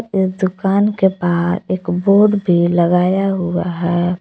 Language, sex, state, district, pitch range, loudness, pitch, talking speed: Hindi, female, Jharkhand, Palamu, 175-195 Hz, -16 LUFS, 185 Hz, 140 wpm